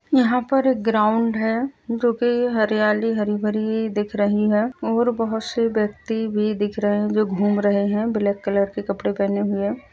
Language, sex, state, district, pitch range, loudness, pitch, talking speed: Hindi, female, Uttar Pradesh, Jyotiba Phule Nagar, 210-230 Hz, -21 LUFS, 215 Hz, 180 wpm